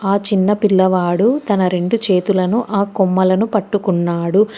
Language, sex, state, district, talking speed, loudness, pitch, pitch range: Telugu, female, Telangana, Hyderabad, 120 wpm, -15 LUFS, 195 Hz, 185-210 Hz